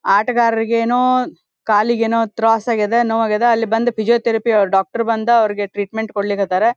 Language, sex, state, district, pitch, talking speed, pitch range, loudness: Kannada, female, Karnataka, Dharwad, 225 Hz, 135 wpm, 215-235 Hz, -16 LUFS